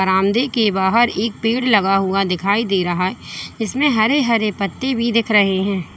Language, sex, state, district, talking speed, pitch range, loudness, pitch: Hindi, female, Uttar Pradesh, Lalitpur, 190 wpm, 195-235 Hz, -17 LUFS, 210 Hz